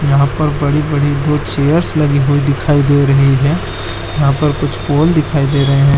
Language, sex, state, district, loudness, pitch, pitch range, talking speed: Hindi, male, Chhattisgarh, Korba, -13 LUFS, 145 Hz, 140-150 Hz, 180 wpm